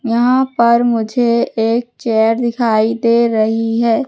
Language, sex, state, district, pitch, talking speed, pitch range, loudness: Hindi, female, Madhya Pradesh, Katni, 235 Hz, 130 wpm, 225-240 Hz, -14 LUFS